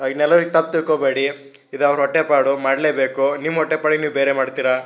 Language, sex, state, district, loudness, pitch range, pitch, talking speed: Kannada, male, Karnataka, Shimoga, -18 LUFS, 135-155 Hz, 140 Hz, 150 wpm